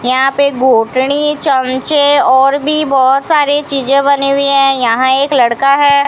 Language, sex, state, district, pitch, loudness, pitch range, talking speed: Hindi, female, Rajasthan, Bikaner, 275 Hz, -10 LUFS, 260-285 Hz, 160 wpm